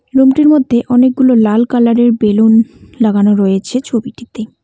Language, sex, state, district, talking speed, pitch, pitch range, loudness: Bengali, female, West Bengal, Cooch Behar, 115 wpm, 235 Hz, 220-255 Hz, -11 LUFS